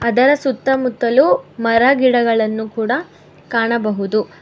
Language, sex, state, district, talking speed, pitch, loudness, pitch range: Kannada, female, Karnataka, Bangalore, 80 wpm, 235 Hz, -16 LUFS, 225-260 Hz